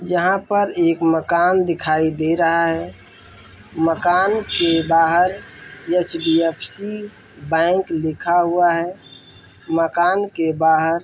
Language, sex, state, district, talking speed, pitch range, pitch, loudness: Hindi, male, Bihar, Darbhanga, 120 wpm, 160-175 Hz, 165 Hz, -18 LUFS